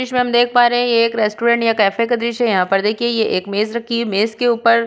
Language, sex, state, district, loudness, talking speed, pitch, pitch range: Hindi, female, Uttar Pradesh, Budaun, -16 LUFS, 330 wpm, 230 Hz, 215-240 Hz